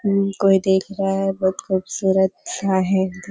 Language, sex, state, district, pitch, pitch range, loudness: Hindi, female, Bihar, Kishanganj, 190 Hz, 190-195 Hz, -20 LUFS